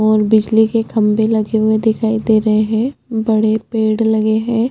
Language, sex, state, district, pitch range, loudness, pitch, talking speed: Hindi, female, Chhattisgarh, Bastar, 215-225 Hz, -15 LUFS, 220 Hz, 180 wpm